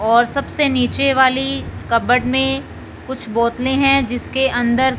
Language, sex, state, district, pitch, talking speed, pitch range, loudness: Hindi, male, Punjab, Fazilka, 260 Hz, 130 wpm, 245-270 Hz, -17 LUFS